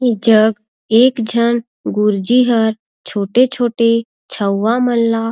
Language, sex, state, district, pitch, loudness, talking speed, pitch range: Surgujia, female, Chhattisgarh, Sarguja, 230 Hz, -15 LUFS, 100 wpm, 220-240 Hz